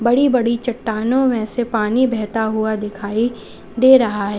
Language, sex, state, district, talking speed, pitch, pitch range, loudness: Hindi, female, Uttar Pradesh, Lalitpur, 165 wpm, 230 Hz, 215-245 Hz, -17 LUFS